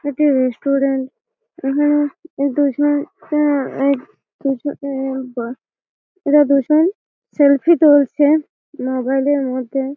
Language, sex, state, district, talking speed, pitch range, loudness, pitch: Bengali, female, West Bengal, Malda, 90 wpm, 270-300 Hz, -17 LUFS, 285 Hz